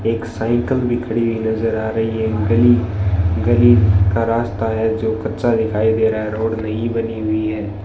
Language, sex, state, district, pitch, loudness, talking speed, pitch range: Hindi, male, Rajasthan, Bikaner, 110 Hz, -17 LUFS, 190 wpm, 110-115 Hz